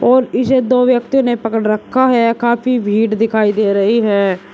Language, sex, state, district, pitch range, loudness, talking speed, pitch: Hindi, male, Uttar Pradesh, Shamli, 215-250 Hz, -14 LUFS, 185 wpm, 230 Hz